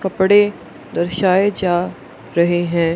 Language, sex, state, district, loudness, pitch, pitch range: Hindi, female, Bihar, Gaya, -17 LUFS, 180 Hz, 170-190 Hz